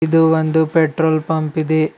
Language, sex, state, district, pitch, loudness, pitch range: Kannada, male, Karnataka, Bidar, 160 Hz, -16 LUFS, 155-160 Hz